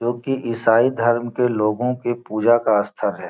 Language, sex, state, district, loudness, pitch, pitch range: Hindi, male, Bihar, Gopalganj, -19 LUFS, 120 Hz, 115-125 Hz